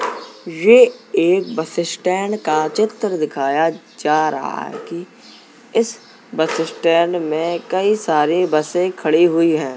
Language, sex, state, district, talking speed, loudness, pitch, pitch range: Hindi, male, Uttar Pradesh, Jalaun, 130 wpm, -17 LUFS, 170 Hz, 160-215 Hz